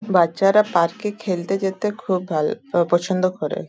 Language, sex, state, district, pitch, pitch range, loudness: Bengali, female, West Bengal, Dakshin Dinajpur, 185 Hz, 175-210 Hz, -20 LUFS